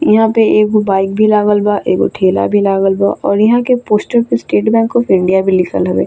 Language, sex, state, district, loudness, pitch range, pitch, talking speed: Bhojpuri, female, Bihar, Saran, -12 LUFS, 195-220 Hz, 210 Hz, 235 wpm